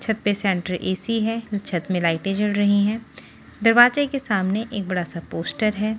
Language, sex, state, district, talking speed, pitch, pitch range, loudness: Hindi, female, Punjab, Pathankot, 190 wpm, 205 Hz, 185-220 Hz, -22 LUFS